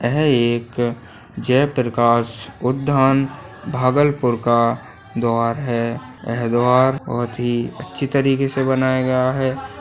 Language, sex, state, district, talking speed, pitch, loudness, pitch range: Hindi, male, Bihar, Bhagalpur, 110 wpm, 125 Hz, -19 LUFS, 120-135 Hz